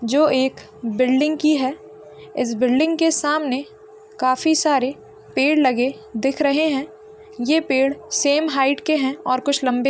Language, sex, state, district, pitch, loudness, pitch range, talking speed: Hindi, female, Uttarakhand, Uttarkashi, 285 Hz, -19 LUFS, 260-315 Hz, 160 wpm